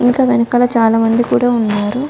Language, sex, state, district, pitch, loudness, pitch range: Telugu, female, Andhra Pradesh, Chittoor, 240 Hz, -13 LUFS, 225-245 Hz